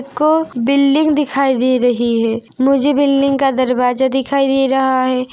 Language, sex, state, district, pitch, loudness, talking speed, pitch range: Hindi, female, Chhattisgarh, Rajnandgaon, 265 Hz, -14 LUFS, 155 wpm, 255-275 Hz